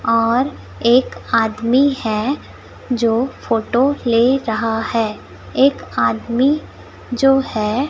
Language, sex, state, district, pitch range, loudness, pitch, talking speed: Hindi, female, Chhattisgarh, Raipur, 225-265 Hz, -17 LUFS, 235 Hz, 100 wpm